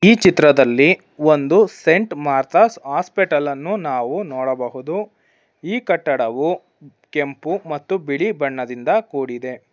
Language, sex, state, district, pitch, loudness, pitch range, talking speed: Kannada, female, Karnataka, Bangalore, 150 Hz, -18 LUFS, 135-195 Hz, 100 wpm